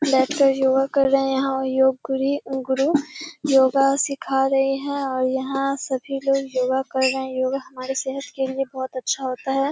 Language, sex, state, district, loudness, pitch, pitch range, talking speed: Hindi, female, Bihar, Kishanganj, -22 LUFS, 270 Hz, 265-275 Hz, 190 wpm